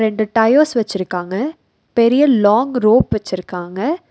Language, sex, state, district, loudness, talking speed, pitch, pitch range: Tamil, female, Tamil Nadu, Nilgiris, -16 LUFS, 100 wpm, 220 Hz, 195-255 Hz